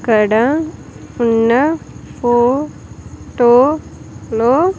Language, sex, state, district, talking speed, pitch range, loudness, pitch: Telugu, female, Andhra Pradesh, Sri Satya Sai, 65 wpm, 230-295 Hz, -14 LUFS, 245 Hz